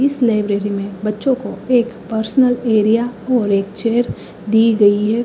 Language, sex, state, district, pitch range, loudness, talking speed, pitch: Hindi, female, Uttar Pradesh, Hamirpur, 205-245 Hz, -16 LUFS, 150 wpm, 225 Hz